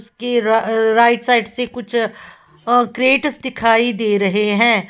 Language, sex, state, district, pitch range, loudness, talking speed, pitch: Hindi, female, Uttar Pradesh, Lalitpur, 220-245 Hz, -16 LUFS, 120 wpm, 230 Hz